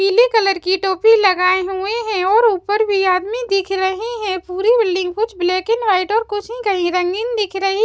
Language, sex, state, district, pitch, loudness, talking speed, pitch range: Hindi, female, Chhattisgarh, Raipur, 395 Hz, -17 LUFS, 205 wpm, 375-445 Hz